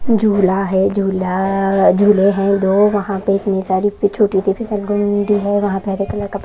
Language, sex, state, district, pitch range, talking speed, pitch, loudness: Hindi, female, Maharashtra, Washim, 195-205 Hz, 185 wpm, 200 Hz, -16 LUFS